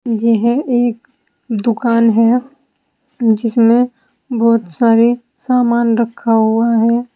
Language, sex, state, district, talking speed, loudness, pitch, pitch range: Hindi, female, Uttar Pradesh, Saharanpur, 90 wpm, -14 LUFS, 235 Hz, 230-245 Hz